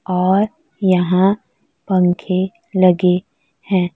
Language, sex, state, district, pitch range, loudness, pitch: Hindi, female, Chhattisgarh, Raipur, 180-195 Hz, -17 LUFS, 185 Hz